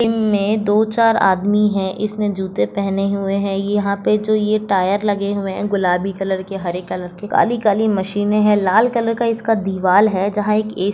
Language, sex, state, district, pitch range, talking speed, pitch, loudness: Hindi, female, Jharkhand, Jamtara, 195-215 Hz, 210 wpm, 205 Hz, -17 LUFS